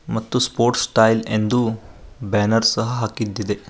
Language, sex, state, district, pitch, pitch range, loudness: Kannada, male, Karnataka, Koppal, 110 Hz, 105-115 Hz, -19 LUFS